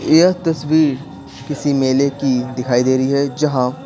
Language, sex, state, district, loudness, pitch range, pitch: Hindi, male, Bihar, Patna, -16 LUFS, 130-150 Hz, 140 Hz